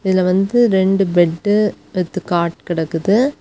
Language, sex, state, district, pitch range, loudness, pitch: Tamil, female, Tamil Nadu, Kanyakumari, 175-205 Hz, -16 LUFS, 185 Hz